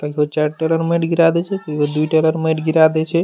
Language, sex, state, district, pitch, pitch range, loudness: Maithili, male, Bihar, Madhepura, 160 Hz, 155-165 Hz, -17 LUFS